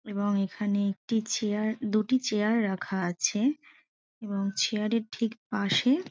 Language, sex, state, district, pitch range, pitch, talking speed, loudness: Bengali, female, West Bengal, Dakshin Dinajpur, 200-230 Hz, 215 Hz, 125 wpm, -28 LUFS